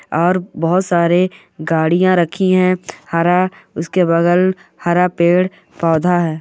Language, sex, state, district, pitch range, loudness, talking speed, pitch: Hindi, female, Andhra Pradesh, Guntur, 170-185 Hz, -15 LUFS, 120 wpm, 175 Hz